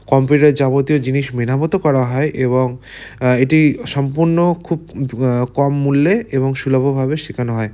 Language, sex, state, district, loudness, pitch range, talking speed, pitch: Bengali, male, West Bengal, Malda, -16 LUFS, 130-150 Hz, 140 wpm, 135 Hz